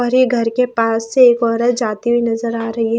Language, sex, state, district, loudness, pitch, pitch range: Hindi, female, Haryana, Rohtak, -15 LUFS, 230 Hz, 230-245 Hz